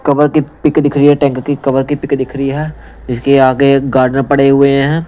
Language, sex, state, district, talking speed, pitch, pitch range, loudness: Hindi, male, Punjab, Pathankot, 235 wpm, 140 Hz, 135-145 Hz, -12 LUFS